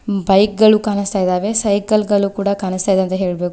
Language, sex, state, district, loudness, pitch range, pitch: Kannada, female, Karnataka, Koppal, -16 LUFS, 190-205 Hz, 200 Hz